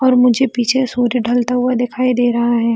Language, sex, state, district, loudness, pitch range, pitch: Hindi, female, Bihar, Jamui, -15 LUFS, 240-250 Hz, 245 Hz